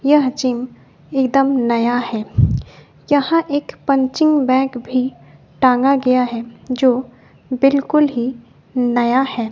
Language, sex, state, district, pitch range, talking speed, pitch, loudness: Hindi, female, Bihar, West Champaran, 245-275 Hz, 115 wpm, 260 Hz, -17 LUFS